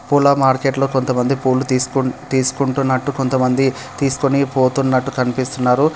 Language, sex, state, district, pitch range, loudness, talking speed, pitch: Telugu, male, Telangana, Hyderabad, 130-135 Hz, -17 LUFS, 110 wpm, 130 Hz